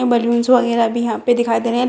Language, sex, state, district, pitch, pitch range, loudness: Hindi, female, Bihar, Jamui, 235 Hz, 230-245 Hz, -16 LUFS